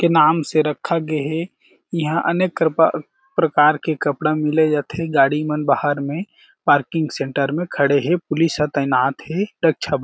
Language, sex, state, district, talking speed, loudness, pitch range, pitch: Chhattisgarhi, male, Chhattisgarh, Jashpur, 175 wpm, -19 LUFS, 150-170 Hz, 155 Hz